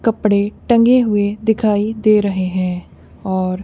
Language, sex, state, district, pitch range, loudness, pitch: Hindi, female, Punjab, Kapurthala, 190-220 Hz, -16 LUFS, 205 Hz